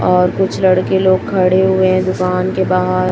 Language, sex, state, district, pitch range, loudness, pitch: Hindi, female, Chhattisgarh, Raipur, 185-190 Hz, -14 LUFS, 185 Hz